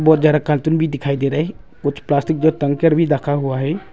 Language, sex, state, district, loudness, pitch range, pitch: Hindi, male, Arunachal Pradesh, Longding, -18 LUFS, 145-160 Hz, 150 Hz